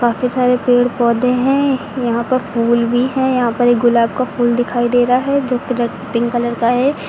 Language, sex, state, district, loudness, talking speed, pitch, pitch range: Hindi, female, Uttar Pradesh, Lucknow, -15 LUFS, 230 wpm, 245 Hz, 235-250 Hz